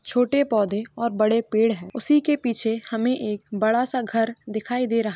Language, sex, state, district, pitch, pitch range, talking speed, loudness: Hindi, female, Jharkhand, Sahebganj, 230 Hz, 220-245 Hz, 200 wpm, -23 LUFS